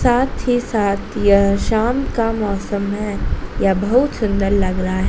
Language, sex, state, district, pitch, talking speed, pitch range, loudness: Hindi, female, Madhya Pradesh, Dhar, 205 Hz, 140 wpm, 200-235 Hz, -18 LUFS